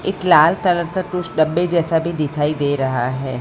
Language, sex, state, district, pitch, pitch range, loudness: Hindi, female, Maharashtra, Mumbai Suburban, 165 Hz, 145-180 Hz, -18 LUFS